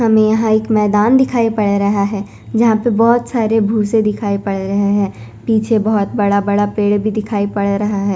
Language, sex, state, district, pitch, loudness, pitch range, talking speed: Hindi, female, Chandigarh, Chandigarh, 210 Hz, -15 LUFS, 200-220 Hz, 190 wpm